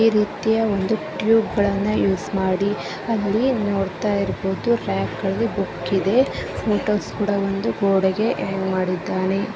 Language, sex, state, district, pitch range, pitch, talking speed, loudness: Kannada, male, Karnataka, Bijapur, 190-215 Hz, 200 Hz, 130 wpm, -21 LUFS